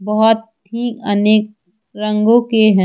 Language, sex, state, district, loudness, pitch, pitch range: Hindi, female, Bihar, Muzaffarpur, -15 LUFS, 215 Hz, 210-225 Hz